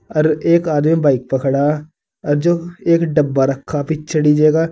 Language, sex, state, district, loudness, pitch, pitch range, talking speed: Hindi, male, Uttar Pradesh, Saharanpur, -16 LUFS, 155 Hz, 145-165 Hz, 180 wpm